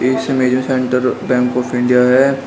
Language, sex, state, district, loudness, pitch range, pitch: Hindi, male, Uttar Pradesh, Shamli, -15 LUFS, 125-130 Hz, 125 Hz